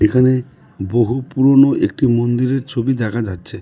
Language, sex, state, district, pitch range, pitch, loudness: Bengali, male, West Bengal, Cooch Behar, 115-130 Hz, 125 Hz, -16 LUFS